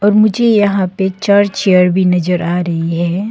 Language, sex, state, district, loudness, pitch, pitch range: Hindi, female, Arunachal Pradesh, Longding, -13 LUFS, 190 Hz, 180-205 Hz